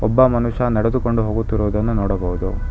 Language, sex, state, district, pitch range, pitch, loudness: Kannada, male, Karnataka, Bangalore, 100-120 Hz, 110 Hz, -19 LUFS